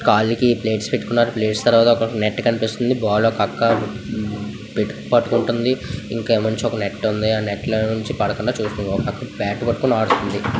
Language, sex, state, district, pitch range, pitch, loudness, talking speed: Telugu, male, Andhra Pradesh, Visakhapatnam, 105-115 Hz, 110 Hz, -20 LUFS, 95 wpm